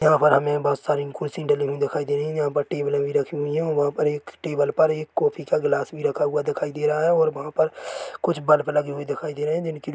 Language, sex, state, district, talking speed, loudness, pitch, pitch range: Hindi, male, Chhattisgarh, Korba, 285 wpm, -23 LUFS, 150 Hz, 145-160 Hz